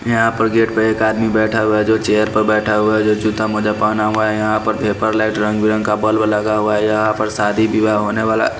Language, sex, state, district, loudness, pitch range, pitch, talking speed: Hindi, male, Haryana, Rohtak, -16 LUFS, 105-110 Hz, 110 Hz, 265 wpm